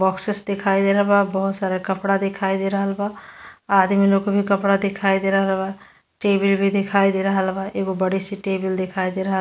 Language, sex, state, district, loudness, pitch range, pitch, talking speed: Bhojpuri, female, Uttar Pradesh, Ghazipur, -20 LUFS, 190-200 Hz, 195 Hz, 225 wpm